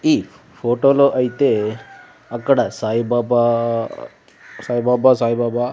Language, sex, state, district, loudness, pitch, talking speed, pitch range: Telugu, male, Andhra Pradesh, Sri Satya Sai, -17 LUFS, 120 Hz, 75 wpm, 115-130 Hz